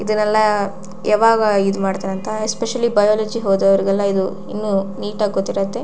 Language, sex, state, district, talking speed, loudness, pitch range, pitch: Kannada, female, Karnataka, Shimoga, 90 wpm, -18 LUFS, 195-215 Hz, 205 Hz